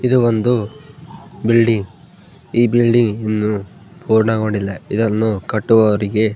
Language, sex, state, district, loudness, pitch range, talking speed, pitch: Kannada, male, Karnataka, Bellary, -16 LUFS, 105-120 Hz, 95 wpm, 110 Hz